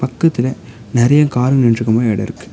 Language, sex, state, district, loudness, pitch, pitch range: Tamil, male, Tamil Nadu, Nilgiris, -14 LUFS, 120 Hz, 115-130 Hz